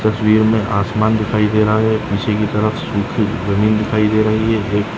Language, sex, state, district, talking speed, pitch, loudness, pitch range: Hindi, male, Maharashtra, Nagpur, 215 wpm, 110 Hz, -16 LUFS, 105-110 Hz